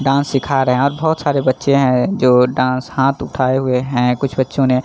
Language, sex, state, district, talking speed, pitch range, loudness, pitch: Hindi, male, Jharkhand, Jamtara, 235 wpm, 125-140 Hz, -16 LUFS, 130 Hz